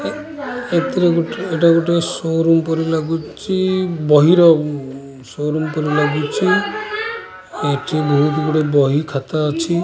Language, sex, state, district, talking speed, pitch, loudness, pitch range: Odia, male, Odisha, Khordha, 130 wpm, 165 Hz, -17 LUFS, 150-175 Hz